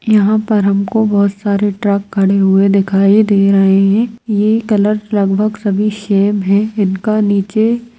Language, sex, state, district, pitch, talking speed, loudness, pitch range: Hindi, female, Bihar, Jamui, 205 Hz, 160 wpm, -13 LUFS, 195-215 Hz